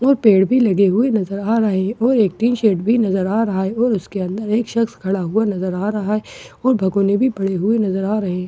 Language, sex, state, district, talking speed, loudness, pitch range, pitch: Hindi, female, Bihar, Katihar, 260 wpm, -18 LUFS, 195-225 Hz, 210 Hz